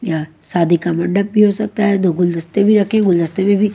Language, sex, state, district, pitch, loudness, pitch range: Hindi, female, Haryana, Charkhi Dadri, 190 Hz, -15 LUFS, 170-210 Hz